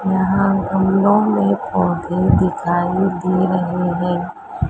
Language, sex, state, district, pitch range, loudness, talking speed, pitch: Hindi, male, Maharashtra, Mumbai Suburban, 175-195 Hz, -17 LUFS, 100 wpm, 190 Hz